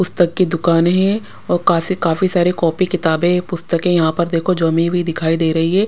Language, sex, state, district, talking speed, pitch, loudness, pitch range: Hindi, female, Punjab, Pathankot, 205 wpm, 175 Hz, -16 LUFS, 165-180 Hz